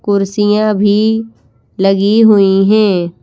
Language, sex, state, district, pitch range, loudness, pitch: Hindi, female, Madhya Pradesh, Bhopal, 195-215 Hz, -11 LUFS, 205 Hz